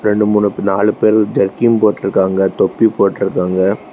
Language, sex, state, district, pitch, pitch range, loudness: Tamil, male, Tamil Nadu, Kanyakumari, 105 Hz, 95-110 Hz, -14 LUFS